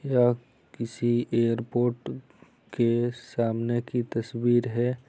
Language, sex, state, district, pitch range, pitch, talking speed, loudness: Hindi, male, Bihar, Saran, 115-120 Hz, 120 Hz, 95 wpm, -27 LUFS